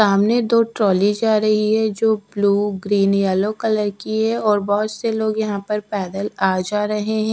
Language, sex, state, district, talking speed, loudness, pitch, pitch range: Hindi, female, Punjab, Fazilka, 195 wpm, -19 LUFS, 210 Hz, 200-220 Hz